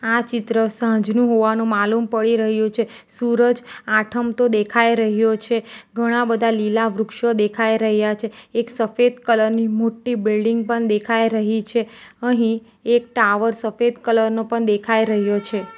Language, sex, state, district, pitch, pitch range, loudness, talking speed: Gujarati, female, Gujarat, Valsad, 225 Hz, 220-235 Hz, -19 LUFS, 150 wpm